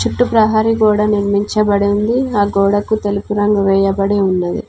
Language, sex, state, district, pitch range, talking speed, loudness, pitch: Telugu, female, Telangana, Mahabubabad, 200-215 Hz, 140 wpm, -14 LUFS, 205 Hz